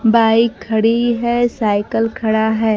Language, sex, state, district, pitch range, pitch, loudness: Hindi, female, Bihar, Kaimur, 220-235 Hz, 225 Hz, -16 LUFS